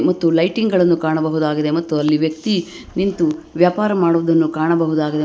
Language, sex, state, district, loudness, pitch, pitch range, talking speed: Kannada, female, Karnataka, Bangalore, -17 LUFS, 165 Hz, 155-180 Hz, 135 wpm